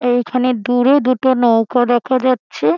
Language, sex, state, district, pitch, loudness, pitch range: Bengali, female, West Bengal, Dakshin Dinajpur, 245 Hz, -15 LUFS, 240-255 Hz